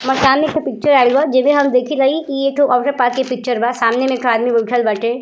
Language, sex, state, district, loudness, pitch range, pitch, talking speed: Bhojpuri, female, Uttar Pradesh, Gorakhpur, -15 LUFS, 245-275 Hz, 260 Hz, 220 wpm